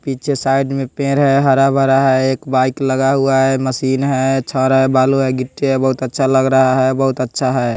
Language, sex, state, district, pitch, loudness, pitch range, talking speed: Hindi, male, Bihar, West Champaran, 135 Hz, -15 LUFS, 130-135 Hz, 215 wpm